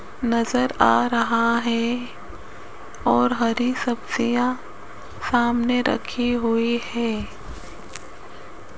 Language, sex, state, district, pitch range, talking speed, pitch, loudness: Hindi, female, Rajasthan, Jaipur, 230-245 Hz, 75 wpm, 235 Hz, -22 LUFS